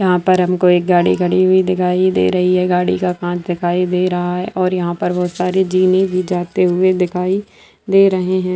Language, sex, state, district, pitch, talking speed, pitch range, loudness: Hindi, male, Bihar, Araria, 180 Hz, 215 wpm, 180-185 Hz, -15 LUFS